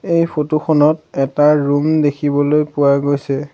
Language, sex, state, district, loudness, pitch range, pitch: Assamese, male, Assam, Sonitpur, -15 LUFS, 145-155 Hz, 150 Hz